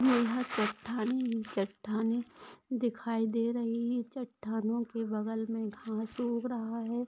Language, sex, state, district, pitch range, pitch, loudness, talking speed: Hindi, female, Maharashtra, Chandrapur, 220-240 Hz, 230 Hz, -34 LUFS, 135 wpm